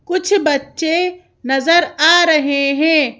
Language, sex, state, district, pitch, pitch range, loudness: Hindi, female, Madhya Pradesh, Bhopal, 320 Hz, 280-350 Hz, -14 LUFS